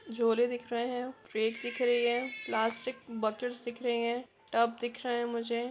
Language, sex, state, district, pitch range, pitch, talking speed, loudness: Hindi, female, Jharkhand, Jamtara, 235-245 Hz, 240 Hz, 190 wpm, -33 LUFS